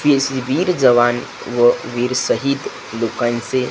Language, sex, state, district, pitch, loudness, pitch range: Marathi, male, Maharashtra, Gondia, 125 Hz, -17 LUFS, 120-135 Hz